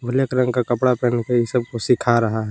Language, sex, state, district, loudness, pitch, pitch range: Hindi, male, Jharkhand, Palamu, -19 LUFS, 120 Hz, 120-125 Hz